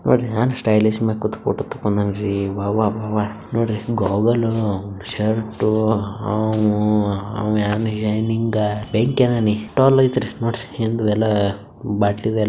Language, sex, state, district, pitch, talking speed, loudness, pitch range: Kannada, male, Karnataka, Bijapur, 110 Hz, 45 wpm, -20 LUFS, 105-115 Hz